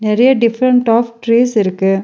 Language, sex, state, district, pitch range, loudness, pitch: Tamil, female, Tamil Nadu, Nilgiris, 210-245 Hz, -13 LUFS, 230 Hz